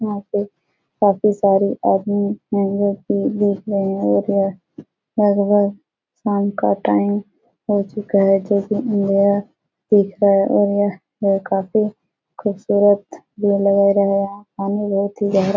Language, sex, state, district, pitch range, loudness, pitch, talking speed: Hindi, male, Bihar, Supaul, 195-205 Hz, -18 LUFS, 200 Hz, 135 wpm